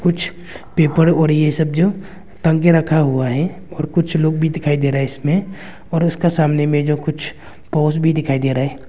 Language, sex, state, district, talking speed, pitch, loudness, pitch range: Hindi, male, Arunachal Pradesh, Longding, 215 wpm, 160 Hz, -17 LUFS, 150-170 Hz